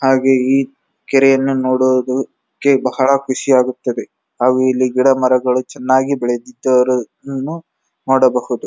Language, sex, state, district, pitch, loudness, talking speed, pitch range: Kannada, male, Karnataka, Dharwad, 130 Hz, -15 LUFS, 95 wpm, 125-135 Hz